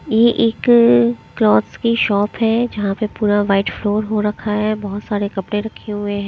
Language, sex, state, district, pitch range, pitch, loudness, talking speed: Hindi, female, Himachal Pradesh, Shimla, 200-225 Hz, 210 Hz, -17 LUFS, 190 wpm